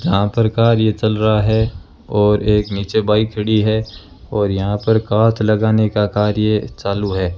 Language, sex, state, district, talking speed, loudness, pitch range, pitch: Hindi, male, Rajasthan, Bikaner, 170 wpm, -16 LUFS, 100-110 Hz, 105 Hz